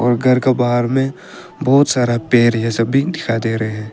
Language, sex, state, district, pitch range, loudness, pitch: Hindi, male, Arunachal Pradesh, Papum Pare, 115-135 Hz, -16 LUFS, 120 Hz